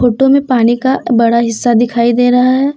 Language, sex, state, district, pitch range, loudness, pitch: Hindi, female, Jharkhand, Deoghar, 235-260 Hz, -11 LUFS, 245 Hz